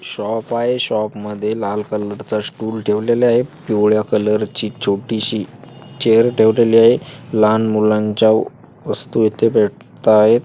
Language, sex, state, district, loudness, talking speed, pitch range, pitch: Marathi, male, Maharashtra, Sindhudurg, -16 LUFS, 120 wpm, 105-115 Hz, 110 Hz